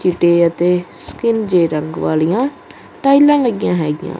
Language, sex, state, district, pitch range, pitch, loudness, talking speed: Punjabi, male, Punjab, Kapurthala, 170-235 Hz, 180 Hz, -15 LUFS, 130 wpm